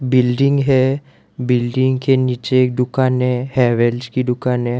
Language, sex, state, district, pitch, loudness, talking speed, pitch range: Hindi, male, Gujarat, Valsad, 125 Hz, -17 LUFS, 150 wpm, 125-130 Hz